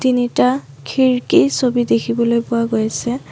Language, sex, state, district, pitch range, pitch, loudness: Assamese, female, Assam, Sonitpur, 230-250 Hz, 235 Hz, -17 LUFS